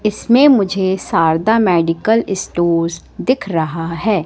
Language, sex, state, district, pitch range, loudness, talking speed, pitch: Hindi, female, Madhya Pradesh, Katni, 165-220 Hz, -15 LUFS, 110 wpm, 190 Hz